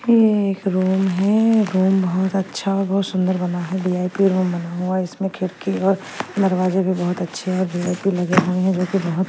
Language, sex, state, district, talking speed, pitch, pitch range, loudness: Hindi, female, Punjab, Kapurthala, 215 wpm, 185 Hz, 180-195 Hz, -20 LUFS